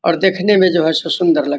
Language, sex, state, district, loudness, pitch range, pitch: Hindi, male, Bihar, Vaishali, -14 LUFS, 160-190 Hz, 170 Hz